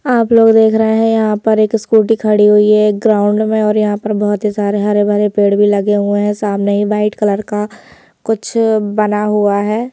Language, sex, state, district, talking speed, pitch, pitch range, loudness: Hindi, female, Madhya Pradesh, Bhopal, 210 wpm, 210 Hz, 205-220 Hz, -13 LUFS